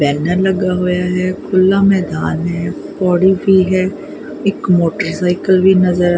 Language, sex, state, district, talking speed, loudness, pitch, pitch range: Punjabi, female, Punjab, Kapurthala, 145 wpm, -14 LUFS, 185 Hz, 175-190 Hz